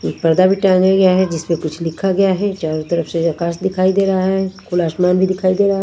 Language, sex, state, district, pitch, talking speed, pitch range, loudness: Hindi, female, Odisha, Nuapada, 185 Hz, 265 wpm, 170-190 Hz, -16 LUFS